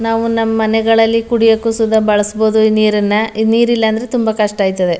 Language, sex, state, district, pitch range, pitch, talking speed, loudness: Kannada, female, Karnataka, Mysore, 215-225 Hz, 220 Hz, 170 wpm, -13 LUFS